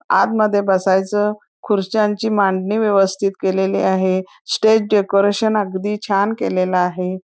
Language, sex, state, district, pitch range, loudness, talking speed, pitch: Marathi, female, Karnataka, Belgaum, 190-210 Hz, -17 LUFS, 105 wpm, 200 Hz